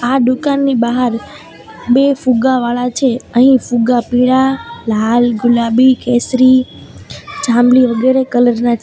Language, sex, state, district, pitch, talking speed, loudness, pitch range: Gujarati, female, Gujarat, Valsad, 250 Hz, 120 wpm, -12 LUFS, 240-260 Hz